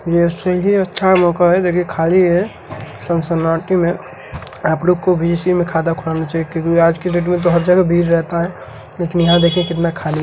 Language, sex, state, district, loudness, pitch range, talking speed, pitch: Hindi, female, Bihar, Gaya, -15 LUFS, 165-180 Hz, 210 wpm, 170 Hz